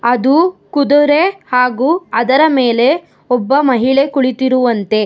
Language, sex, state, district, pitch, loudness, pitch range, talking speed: Kannada, female, Karnataka, Bangalore, 265 Hz, -13 LUFS, 245-295 Hz, 95 wpm